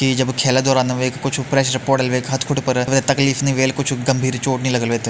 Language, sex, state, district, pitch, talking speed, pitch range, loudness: Hindi, male, Uttarakhand, Uttarkashi, 130 Hz, 235 wpm, 130-135 Hz, -18 LUFS